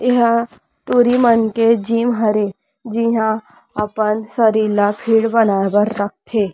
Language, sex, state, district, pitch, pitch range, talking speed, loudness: Chhattisgarhi, female, Chhattisgarh, Rajnandgaon, 225 Hz, 210-230 Hz, 140 wpm, -16 LUFS